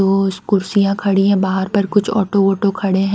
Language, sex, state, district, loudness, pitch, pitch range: Hindi, female, Haryana, Rohtak, -16 LUFS, 195 Hz, 195-200 Hz